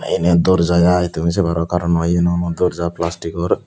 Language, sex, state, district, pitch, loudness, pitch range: Chakma, male, Tripura, Unakoti, 85 Hz, -17 LUFS, 85-90 Hz